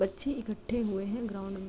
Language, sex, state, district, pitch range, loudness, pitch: Hindi, female, Uttar Pradesh, Jalaun, 195-235 Hz, -34 LUFS, 210 Hz